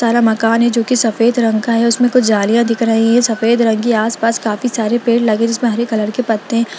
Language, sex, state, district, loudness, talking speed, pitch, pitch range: Hindi, female, Bihar, Lakhisarai, -14 LUFS, 255 wpm, 230 Hz, 225-235 Hz